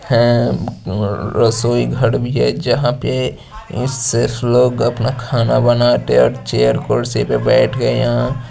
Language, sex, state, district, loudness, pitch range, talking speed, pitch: Hindi, male, Chandigarh, Chandigarh, -15 LUFS, 95-120 Hz, 135 wpm, 115 Hz